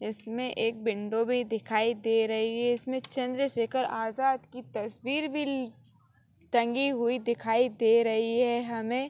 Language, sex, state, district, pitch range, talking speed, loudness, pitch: Hindi, female, Uttar Pradesh, Gorakhpur, 225-250 Hz, 140 wpm, -28 LUFS, 235 Hz